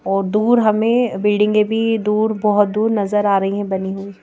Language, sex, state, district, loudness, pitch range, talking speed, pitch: Hindi, female, Madhya Pradesh, Bhopal, -17 LUFS, 200-220 Hz, 200 wpm, 210 Hz